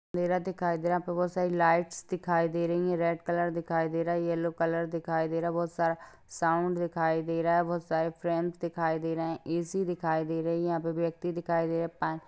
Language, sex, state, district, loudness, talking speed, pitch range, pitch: Hindi, female, Bihar, Gaya, -30 LUFS, 255 wpm, 165-175 Hz, 170 Hz